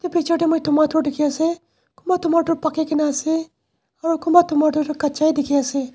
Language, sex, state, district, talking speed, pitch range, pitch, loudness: Nagamese, male, Nagaland, Dimapur, 180 wpm, 300-330 Hz, 315 Hz, -19 LUFS